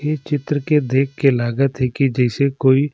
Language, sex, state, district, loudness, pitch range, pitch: Surgujia, male, Chhattisgarh, Sarguja, -18 LUFS, 130-145 Hz, 135 Hz